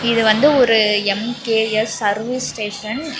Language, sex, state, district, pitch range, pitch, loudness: Tamil, female, Tamil Nadu, Namakkal, 215-245 Hz, 220 Hz, -17 LUFS